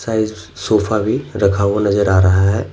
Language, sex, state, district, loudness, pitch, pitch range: Hindi, male, Bihar, Patna, -15 LUFS, 100 Hz, 100-110 Hz